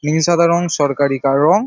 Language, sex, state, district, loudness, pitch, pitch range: Bengali, male, West Bengal, Paschim Medinipur, -15 LUFS, 155 Hz, 140-170 Hz